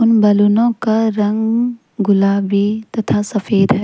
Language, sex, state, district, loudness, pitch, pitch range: Hindi, female, Jharkhand, Deoghar, -15 LUFS, 210 Hz, 205-225 Hz